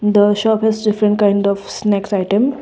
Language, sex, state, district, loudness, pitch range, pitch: English, female, Assam, Kamrup Metropolitan, -15 LUFS, 200-220 Hz, 210 Hz